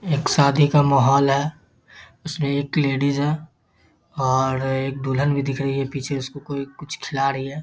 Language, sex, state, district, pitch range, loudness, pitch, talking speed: Hindi, male, Bihar, Muzaffarpur, 135-145 Hz, -21 LUFS, 140 Hz, 180 wpm